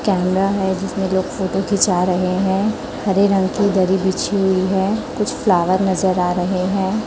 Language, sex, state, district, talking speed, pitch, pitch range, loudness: Hindi, female, Chhattisgarh, Raipur, 180 wpm, 190 Hz, 185-195 Hz, -18 LUFS